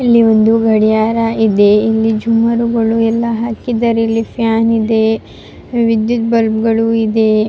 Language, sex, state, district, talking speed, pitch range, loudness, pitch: Kannada, female, Karnataka, Raichur, 120 wpm, 220-230 Hz, -13 LUFS, 225 Hz